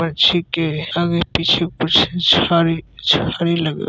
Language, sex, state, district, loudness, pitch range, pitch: Hindi, male, Bihar, Gopalganj, -16 LUFS, 165-175 Hz, 170 Hz